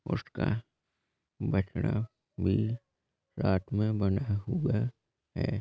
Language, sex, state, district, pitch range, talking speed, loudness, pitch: Hindi, male, Uttar Pradesh, Jalaun, 100-120 Hz, 85 wpm, -32 LUFS, 110 Hz